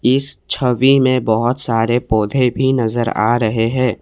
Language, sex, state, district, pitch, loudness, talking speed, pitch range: Hindi, male, Assam, Kamrup Metropolitan, 120 Hz, -16 LUFS, 165 wpm, 115-130 Hz